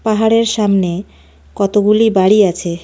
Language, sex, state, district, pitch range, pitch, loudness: Bengali, female, West Bengal, Darjeeling, 175-215 Hz, 200 Hz, -13 LUFS